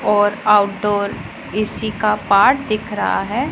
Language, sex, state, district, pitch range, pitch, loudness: Hindi, female, Punjab, Pathankot, 205-215 Hz, 210 Hz, -17 LUFS